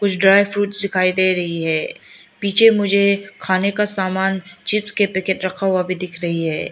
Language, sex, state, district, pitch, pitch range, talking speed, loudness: Hindi, female, Arunachal Pradesh, Lower Dibang Valley, 190 Hz, 185-200 Hz, 190 wpm, -18 LUFS